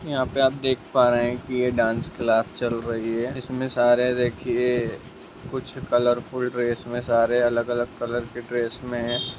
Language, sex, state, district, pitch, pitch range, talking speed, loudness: Hindi, male, Bihar, Jamui, 120 Hz, 120-125 Hz, 170 wpm, -24 LUFS